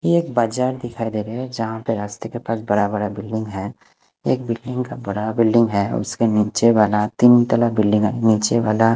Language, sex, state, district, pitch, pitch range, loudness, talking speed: Hindi, male, Bihar, Kaimur, 115 Hz, 105-120 Hz, -19 LUFS, 200 wpm